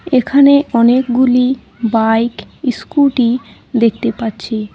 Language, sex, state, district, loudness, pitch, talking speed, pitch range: Bengali, female, West Bengal, Cooch Behar, -14 LUFS, 240 Hz, 75 wpm, 225-260 Hz